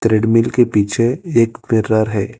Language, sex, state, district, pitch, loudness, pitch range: Hindi, female, Telangana, Hyderabad, 115 Hz, -15 LUFS, 110-120 Hz